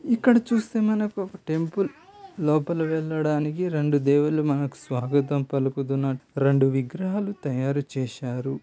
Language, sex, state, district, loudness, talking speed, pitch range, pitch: Telugu, male, Andhra Pradesh, Srikakulam, -25 LUFS, 110 wpm, 135-195 Hz, 150 Hz